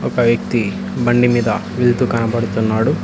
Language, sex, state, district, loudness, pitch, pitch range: Telugu, male, Telangana, Hyderabad, -16 LUFS, 120 Hz, 115-120 Hz